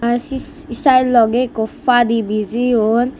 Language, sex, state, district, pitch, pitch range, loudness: Chakma, female, Tripura, West Tripura, 240 Hz, 230-255 Hz, -16 LUFS